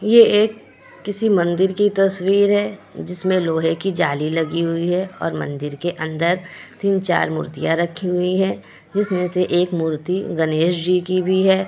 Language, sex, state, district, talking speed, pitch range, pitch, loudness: Hindi, female, Bihar, Kishanganj, 165 wpm, 170-195 Hz, 180 Hz, -19 LUFS